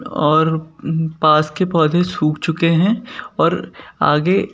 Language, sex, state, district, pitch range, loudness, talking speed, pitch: Hindi, male, Madhya Pradesh, Bhopal, 155-180 Hz, -17 LUFS, 120 wpm, 160 Hz